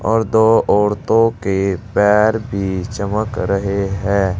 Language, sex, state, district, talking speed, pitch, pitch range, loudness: Hindi, male, Uttar Pradesh, Saharanpur, 120 wpm, 105 Hz, 100-110 Hz, -16 LUFS